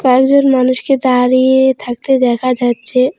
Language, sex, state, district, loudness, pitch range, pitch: Bengali, female, West Bengal, Alipurduar, -12 LUFS, 250-265 Hz, 255 Hz